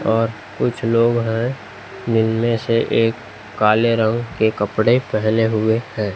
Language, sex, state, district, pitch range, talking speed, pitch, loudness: Hindi, male, Chhattisgarh, Raipur, 110-115 Hz, 135 wpm, 115 Hz, -18 LUFS